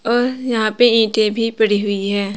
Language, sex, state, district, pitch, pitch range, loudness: Hindi, female, Uttar Pradesh, Saharanpur, 220 Hz, 205-235 Hz, -16 LUFS